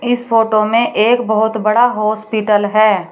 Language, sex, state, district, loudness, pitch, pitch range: Hindi, female, Uttar Pradesh, Shamli, -13 LUFS, 215 Hz, 215-230 Hz